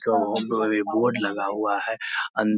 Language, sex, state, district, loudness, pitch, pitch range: Hindi, male, Bihar, Muzaffarpur, -24 LUFS, 105 Hz, 100-110 Hz